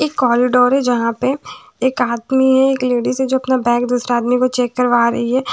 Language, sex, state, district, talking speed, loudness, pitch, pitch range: Hindi, female, Bihar, West Champaran, 230 wpm, -16 LUFS, 250 Hz, 240-260 Hz